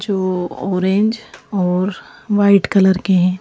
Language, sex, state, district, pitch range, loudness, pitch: Hindi, female, Madhya Pradesh, Bhopal, 185-200 Hz, -16 LUFS, 190 Hz